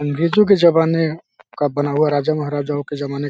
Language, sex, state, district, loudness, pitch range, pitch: Hindi, male, Uttar Pradesh, Deoria, -17 LUFS, 145-165 Hz, 145 Hz